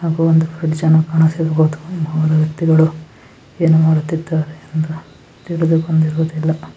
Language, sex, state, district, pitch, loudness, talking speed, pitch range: Kannada, male, Karnataka, Chamarajanagar, 160 Hz, -16 LUFS, 35 wpm, 155-160 Hz